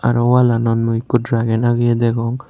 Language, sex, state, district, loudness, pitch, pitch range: Chakma, male, Tripura, Unakoti, -16 LUFS, 120 Hz, 115-120 Hz